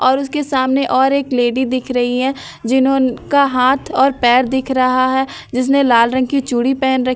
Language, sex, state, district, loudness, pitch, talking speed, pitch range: Hindi, female, Bihar, Katihar, -15 LUFS, 260 Hz, 210 wpm, 255-270 Hz